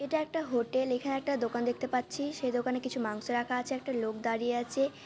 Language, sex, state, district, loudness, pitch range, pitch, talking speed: Bengali, female, West Bengal, Malda, -32 LUFS, 240-270 Hz, 250 Hz, 215 wpm